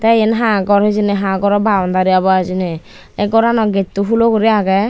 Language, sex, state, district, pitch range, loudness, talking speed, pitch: Chakma, female, Tripura, Dhalai, 190-220 Hz, -14 LUFS, 195 wpm, 205 Hz